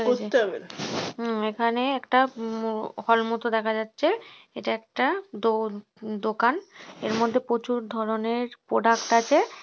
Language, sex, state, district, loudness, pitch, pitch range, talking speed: Bengali, female, West Bengal, Paschim Medinipur, -26 LUFS, 230 Hz, 220-245 Hz, 105 wpm